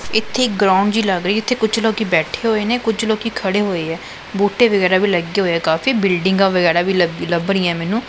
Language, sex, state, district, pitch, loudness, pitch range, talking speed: Punjabi, female, Punjab, Pathankot, 195 Hz, -17 LUFS, 180-220 Hz, 215 wpm